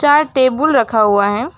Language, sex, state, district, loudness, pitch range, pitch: Hindi, female, West Bengal, Alipurduar, -13 LUFS, 215-295 Hz, 255 Hz